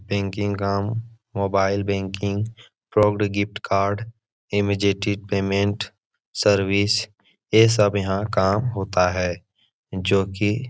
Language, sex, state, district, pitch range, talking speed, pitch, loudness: Hindi, male, Bihar, Jahanabad, 100-105 Hz, 105 wpm, 100 Hz, -22 LUFS